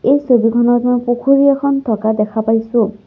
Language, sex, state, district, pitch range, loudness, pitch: Assamese, female, Assam, Sonitpur, 220-270 Hz, -14 LUFS, 240 Hz